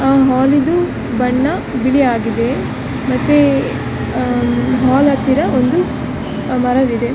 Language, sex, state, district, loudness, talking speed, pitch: Kannada, female, Karnataka, Dakshina Kannada, -15 LUFS, 85 wpm, 250 Hz